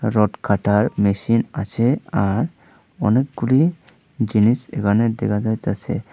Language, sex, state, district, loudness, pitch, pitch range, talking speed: Bengali, male, Tripura, Unakoti, -20 LUFS, 115 Hz, 105-130 Hz, 100 wpm